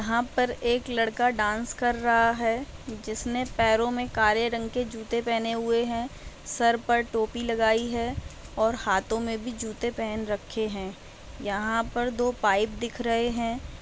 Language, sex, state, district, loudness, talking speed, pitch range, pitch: Hindi, female, Uttar Pradesh, Budaun, -27 LUFS, 165 wpm, 220-240 Hz, 230 Hz